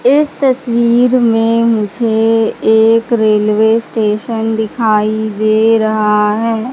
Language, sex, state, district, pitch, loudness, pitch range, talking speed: Hindi, female, Madhya Pradesh, Katni, 225 Hz, -12 LUFS, 215-230 Hz, 100 wpm